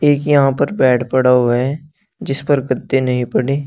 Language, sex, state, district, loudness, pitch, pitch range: Hindi, male, Uttar Pradesh, Shamli, -15 LUFS, 135 Hz, 125-145 Hz